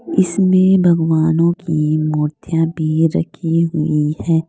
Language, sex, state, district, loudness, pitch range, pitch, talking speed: Hindi, female, Uttar Pradesh, Saharanpur, -16 LUFS, 155-170 Hz, 165 Hz, 105 wpm